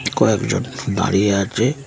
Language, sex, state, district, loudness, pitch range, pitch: Bengali, male, West Bengal, Paschim Medinipur, -19 LUFS, 100-130 Hz, 110 Hz